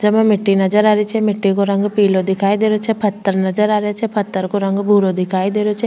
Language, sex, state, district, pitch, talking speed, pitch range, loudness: Rajasthani, female, Rajasthan, Churu, 205 Hz, 275 wpm, 195-210 Hz, -16 LUFS